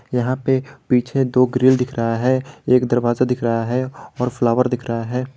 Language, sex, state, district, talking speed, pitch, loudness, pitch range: Hindi, male, Jharkhand, Garhwa, 200 wpm, 125 Hz, -19 LUFS, 120-130 Hz